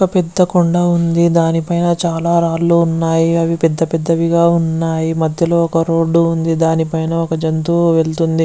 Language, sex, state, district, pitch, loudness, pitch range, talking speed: Telugu, male, Andhra Pradesh, Visakhapatnam, 165 Hz, -14 LUFS, 165-170 Hz, 165 wpm